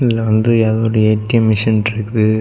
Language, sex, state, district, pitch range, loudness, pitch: Tamil, male, Tamil Nadu, Kanyakumari, 110-115 Hz, -14 LUFS, 110 Hz